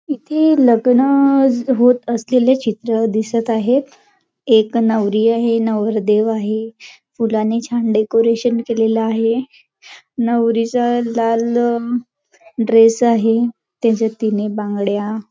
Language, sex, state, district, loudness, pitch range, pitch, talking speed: Marathi, female, Maharashtra, Nagpur, -16 LUFS, 225-245 Hz, 230 Hz, 100 wpm